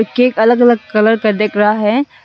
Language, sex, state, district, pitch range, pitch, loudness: Hindi, female, Arunachal Pradesh, Longding, 215-240 Hz, 220 Hz, -12 LUFS